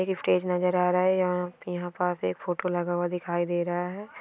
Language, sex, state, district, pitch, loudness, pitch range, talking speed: Hindi, female, Bihar, Sitamarhi, 180 Hz, -27 LUFS, 175-180 Hz, 255 wpm